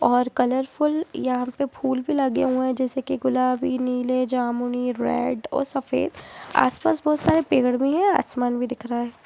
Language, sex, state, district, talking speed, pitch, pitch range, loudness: Hindi, female, Jharkhand, Jamtara, 195 wpm, 255 Hz, 250-275 Hz, -23 LUFS